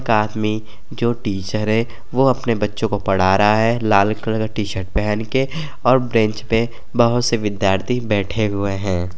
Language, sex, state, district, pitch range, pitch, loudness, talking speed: Bhojpuri, male, Uttar Pradesh, Gorakhpur, 105-115 Hz, 110 Hz, -19 LUFS, 165 wpm